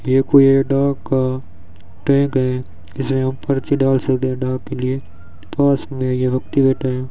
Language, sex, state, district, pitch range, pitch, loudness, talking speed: Hindi, male, Rajasthan, Bikaner, 130-135 Hz, 130 Hz, -18 LUFS, 170 wpm